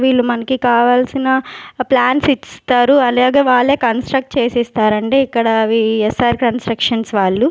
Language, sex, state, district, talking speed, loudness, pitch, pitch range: Telugu, female, Andhra Pradesh, Sri Satya Sai, 130 wpm, -14 LUFS, 245 Hz, 230-260 Hz